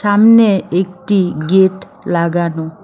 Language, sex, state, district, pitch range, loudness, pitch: Bengali, female, West Bengal, Cooch Behar, 170-205 Hz, -13 LUFS, 190 Hz